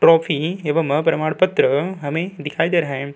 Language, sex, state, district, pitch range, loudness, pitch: Hindi, male, Uttarakhand, Tehri Garhwal, 145-170 Hz, -19 LUFS, 160 Hz